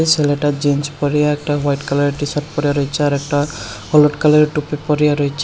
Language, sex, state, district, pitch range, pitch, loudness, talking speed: Bengali, male, Tripura, Unakoti, 145-150 Hz, 145 Hz, -16 LUFS, 200 wpm